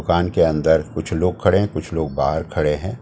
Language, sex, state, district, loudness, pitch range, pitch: Hindi, male, Delhi, New Delhi, -19 LUFS, 80-90 Hz, 80 Hz